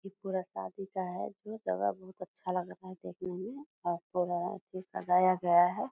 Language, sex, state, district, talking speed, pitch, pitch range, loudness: Hindi, female, Bihar, Purnia, 195 wpm, 185 Hz, 175-195 Hz, -33 LUFS